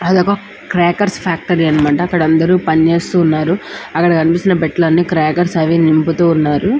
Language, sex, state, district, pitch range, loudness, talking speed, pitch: Telugu, male, Andhra Pradesh, Anantapur, 160-180 Hz, -13 LUFS, 160 wpm, 170 Hz